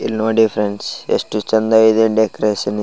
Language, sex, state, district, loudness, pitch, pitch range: Kannada, male, Karnataka, Raichur, -16 LUFS, 110 Hz, 105-110 Hz